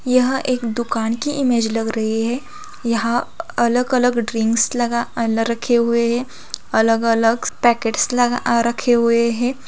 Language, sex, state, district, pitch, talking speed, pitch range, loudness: Hindi, female, Bihar, Gopalganj, 235 Hz, 140 wpm, 230-245 Hz, -18 LUFS